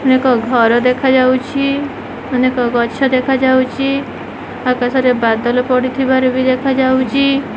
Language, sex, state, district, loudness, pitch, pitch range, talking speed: Odia, female, Odisha, Khordha, -14 LUFS, 255 Hz, 250-265 Hz, 85 wpm